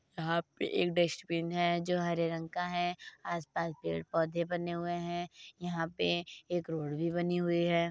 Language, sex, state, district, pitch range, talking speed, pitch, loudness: Hindi, female, Uttar Pradesh, Muzaffarnagar, 165-175 Hz, 180 wpm, 170 Hz, -34 LUFS